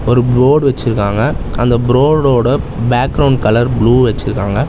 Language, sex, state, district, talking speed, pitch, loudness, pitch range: Tamil, male, Tamil Nadu, Chennai, 115 wpm, 120 Hz, -12 LUFS, 115-135 Hz